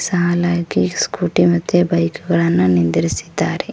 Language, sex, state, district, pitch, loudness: Kannada, male, Karnataka, Koppal, 130 Hz, -17 LUFS